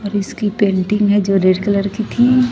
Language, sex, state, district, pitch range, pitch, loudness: Hindi, female, Chhattisgarh, Raipur, 195-210 Hz, 205 Hz, -16 LUFS